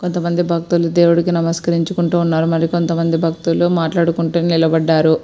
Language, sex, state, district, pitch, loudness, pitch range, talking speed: Telugu, female, Andhra Pradesh, Srikakulam, 170 Hz, -16 LUFS, 165-170 Hz, 115 wpm